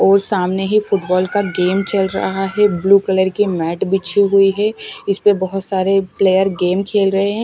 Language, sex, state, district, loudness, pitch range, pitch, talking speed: Hindi, female, Odisha, Malkangiri, -16 LUFS, 190-200 Hz, 195 Hz, 200 wpm